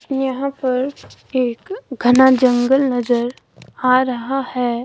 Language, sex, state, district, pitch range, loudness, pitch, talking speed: Hindi, female, Himachal Pradesh, Shimla, 245-270 Hz, -17 LUFS, 255 Hz, 110 wpm